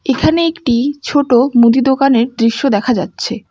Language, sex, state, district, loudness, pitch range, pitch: Bengali, female, West Bengal, Alipurduar, -13 LUFS, 235-275 Hz, 255 Hz